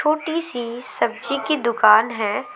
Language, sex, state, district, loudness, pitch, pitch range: Hindi, female, West Bengal, Alipurduar, -20 LUFS, 245 Hz, 230-305 Hz